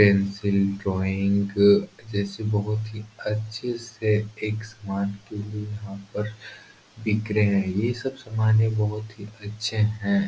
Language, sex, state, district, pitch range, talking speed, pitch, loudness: Hindi, male, Uttar Pradesh, Etah, 100-110 Hz, 140 wpm, 105 Hz, -25 LUFS